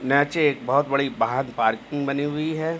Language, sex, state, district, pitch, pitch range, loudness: Hindi, male, Uttar Pradesh, Jalaun, 140 Hz, 130-150 Hz, -23 LUFS